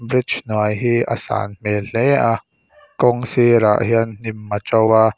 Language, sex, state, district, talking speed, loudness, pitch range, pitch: Mizo, male, Mizoram, Aizawl, 185 wpm, -18 LUFS, 110-120 Hz, 115 Hz